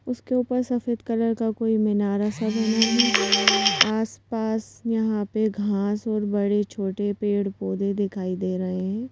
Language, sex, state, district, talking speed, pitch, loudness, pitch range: Hindi, female, Madhya Pradesh, Bhopal, 160 wpm, 210 Hz, -23 LUFS, 200-225 Hz